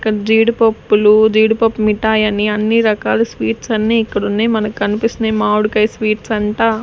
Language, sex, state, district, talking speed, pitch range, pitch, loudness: Telugu, female, Andhra Pradesh, Sri Satya Sai, 140 wpm, 210-225 Hz, 220 Hz, -14 LUFS